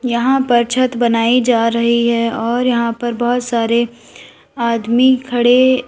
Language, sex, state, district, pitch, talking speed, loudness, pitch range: Hindi, female, Uttar Pradesh, Lalitpur, 240 Hz, 145 wpm, -15 LUFS, 235-245 Hz